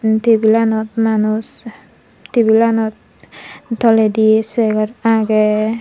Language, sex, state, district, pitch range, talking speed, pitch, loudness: Chakma, female, Tripura, Dhalai, 215-225 Hz, 60 wpm, 220 Hz, -14 LUFS